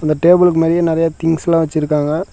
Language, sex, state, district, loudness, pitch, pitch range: Tamil, male, Tamil Nadu, Namakkal, -14 LUFS, 165 Hz, 155-170 Hz